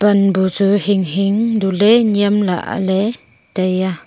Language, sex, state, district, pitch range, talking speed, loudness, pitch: Wancho, female, Arunachal Pradesh, Longding, 190-205 Hz, 135 wpm, -15 LUFS, 195 Hz